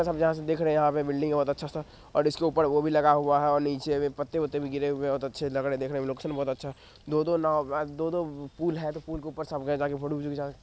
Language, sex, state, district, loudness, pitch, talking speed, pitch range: Hindi, male, Bihar, Madhepura, -28 LUFS, 145 Hz, 350 wpm, 140-155 Hz